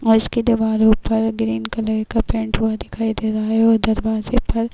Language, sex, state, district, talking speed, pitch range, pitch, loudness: Hindi, female, Uttar Pradesh, Jyotiba Phule Nagar, 215 wpm, 220-225 Hz, 220 Hz, -19 LUFS